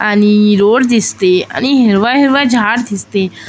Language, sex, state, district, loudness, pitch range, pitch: Marathi, female, Maharashtra, Aurangabad, -11 LUFS, 200-245 Hz, 210 Hz